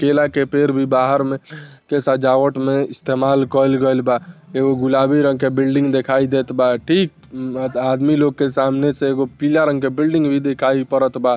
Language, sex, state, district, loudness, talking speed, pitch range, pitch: Bhojpuri, male, Bihar, Saran, -17 LUFS, 190 wpm, 130-145 Hz, 135 Hz